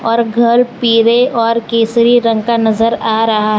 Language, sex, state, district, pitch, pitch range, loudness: Hindi, female, Gujarat, Valsad, 230 Hz, 225-235 Hz, -12 LUFS